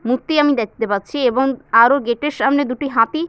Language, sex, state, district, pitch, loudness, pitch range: Bengali, female, West Bengal, Jalpaiguri, 260 Hz, -17 LUFS, 230-285 Hz